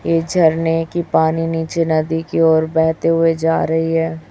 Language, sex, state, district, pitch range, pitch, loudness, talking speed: Hindi, female, Chhattisgarh, Raipur, 160-165 Hz, 165 Hz, -16 LUFS, 180 wpm